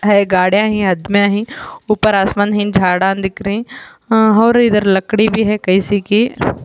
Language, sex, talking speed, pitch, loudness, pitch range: Urdu, female, 170 wpm, 205 Hz, -14 LUFS, 195-215 Hz